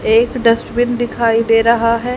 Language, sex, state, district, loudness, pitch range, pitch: Hindi, female, Haryana, Rohtak, -14 LUFS, 230-240 Hz, 235 Hz